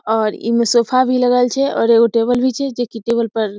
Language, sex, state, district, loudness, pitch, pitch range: Maithili, female, Bihar, Samastipur, -15 LUFS, 235 Hz, 230-250 Hz